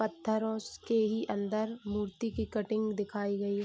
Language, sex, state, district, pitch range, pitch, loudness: Hindi, female, Bihar, Saharsa, 205-220 Hz, 215 Hz, -34 LUFS